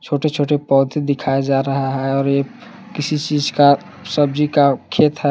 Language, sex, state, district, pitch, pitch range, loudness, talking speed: Hindi, male, Jharkhand, Palamu, 145 Hz, 135-150 Hz, -17 LUFS, 180 wpm